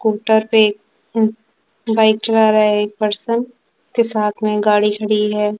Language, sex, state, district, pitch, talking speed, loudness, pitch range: Hindi, female, Punjab, Kapurthala, 215 Hz, 140 wpm, -16 LUFS, 210-220 Hz